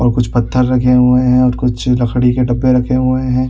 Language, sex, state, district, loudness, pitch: Hindi, male, Chhattisgarh, Raigarh, -13 LUFS, 125 Hz